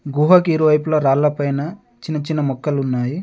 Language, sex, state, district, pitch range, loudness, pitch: Telugu, male, Telangana, Adilabad, 140-160 Hz, -17 LUFS, 150 Hz